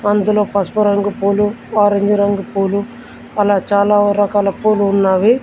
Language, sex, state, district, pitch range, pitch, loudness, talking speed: Telugu, male, Telangana, Komaram Bheem, 200-210 Hz, 205 Hz, -15 LUFS, 135 wpm